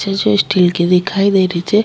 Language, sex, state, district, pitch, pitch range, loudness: Rajasthani, female, Rajasthan, Nagaur, 195 Hz, 180-200 Hz, -14 LUFS